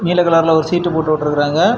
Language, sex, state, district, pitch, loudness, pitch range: Tamil, male, Tamil Nadu, Kanyakumari, 165 Hz, -15 LUFS, 155-175 Hz